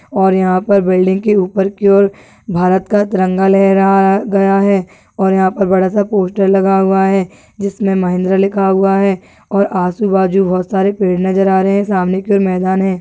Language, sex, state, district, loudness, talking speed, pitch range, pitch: Hindi, female, Rajasthan, Churu, -13 LUFS, 200 wpm, 190-195 Hz, 195 Hz